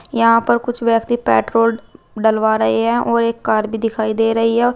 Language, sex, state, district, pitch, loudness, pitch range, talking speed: Hindi, female, Uttar Pradesh, Saharanpur, 230 Hz, -16 LUFS, 220-235 Hz, 200 wpm